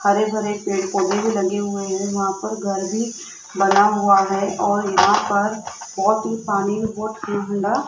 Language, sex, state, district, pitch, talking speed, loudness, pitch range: Hindi, female, Rajasthan, Jaipur, 200 Hz, 190 wpm, -20 LUFS, 195-210 Hz